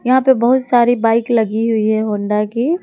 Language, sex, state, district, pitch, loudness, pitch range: Hindi, female, Jharkhand, Palamu, 235 Hz, -15 LUFS, 220-250 Hz